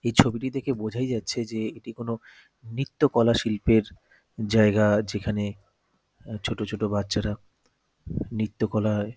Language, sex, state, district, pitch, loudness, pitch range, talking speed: Bengali, male, West Bengal, North 24 Parganas, 110 Hz, -26 LUFS, 105-115 Hz, 105 wpm